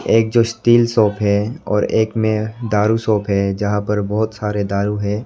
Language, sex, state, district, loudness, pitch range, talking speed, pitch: Hindi, male, Arunachal Pradesh, Lower Dibang Valley, -17 LUFS, 105-110 Hz, 195 wpm, 105 Hz